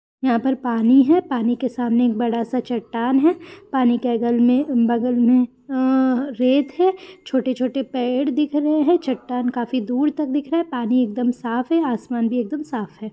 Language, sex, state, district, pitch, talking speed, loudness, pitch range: Hindi, female, Jharkhand, Sahebganj, 255 Hz, 195 wpm, -20 LUFS, 240-285 Hz